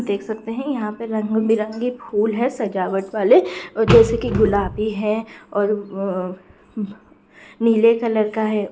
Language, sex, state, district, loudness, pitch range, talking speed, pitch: Hindi, female, Bihar, Bhagalpur, -20 LUFS, 200-225 Hz, 130 wpm, 215 Hz